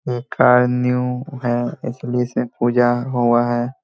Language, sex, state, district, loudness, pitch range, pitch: Hindi, male, Bihar, Jamui, -18 LUFS, 120-125 Hz, 125 Hz